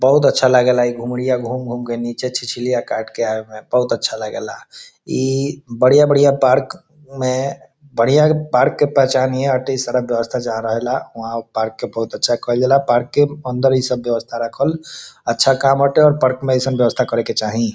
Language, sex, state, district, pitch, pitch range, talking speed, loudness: Bhojpuri, male, Bihar, Saran, 125 Hz, 120-135 Hz, 185 wpm, -17 LUFS